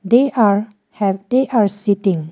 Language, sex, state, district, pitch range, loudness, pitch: English, female, Arunachal Pradesh, Lower Dibang Valley, 195-235 Hz, -16 LUFS, 205 Hz